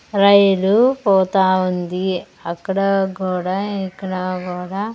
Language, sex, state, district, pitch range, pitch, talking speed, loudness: Telugu, female, Andhra Pradesh, Sri Satya Sai, 185-200 Hz, 190 Hz, 85 wpm, -18 LUFS